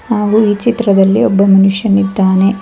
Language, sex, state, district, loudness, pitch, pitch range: Kannada, female, Karnataka, Bangalore, -11 LUFS, 200 Hz, 195-215 Hz